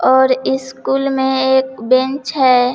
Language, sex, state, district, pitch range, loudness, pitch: Hindi, female, Jharkhand, Palamu, 260-265 Hz, -15 LUFS, 265 Hz